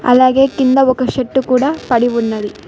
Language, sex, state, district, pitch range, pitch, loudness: Telugu, female, Telangana, Mahabubabad, 245-270 Hz, 255 Hz, -13 LUFS